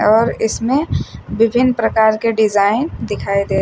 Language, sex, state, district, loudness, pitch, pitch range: Hindi, female, Uttar Pradesh, Shamli, -16 LUFS, 220 Hz, 210-235 Hz